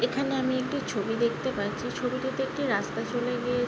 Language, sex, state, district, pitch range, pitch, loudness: Bengali, female, West Bengal, Jhargram, 245-265 Hz, 250 Hz, -29 LUFS